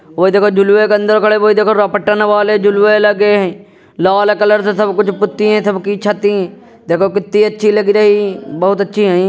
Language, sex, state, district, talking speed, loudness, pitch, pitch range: Hindi, male, Uttar Pradesh, Jyotiba Phule Nagar, 195 wpm, -12 LUFS, 205 Hz, 200-210 Hz